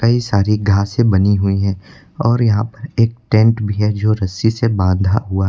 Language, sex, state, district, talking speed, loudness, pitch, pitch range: Hindi, male, Uttar Pradesh, Lucknow, 195 wpm, -16 LUFS, 105 Hz, 100-115 Hz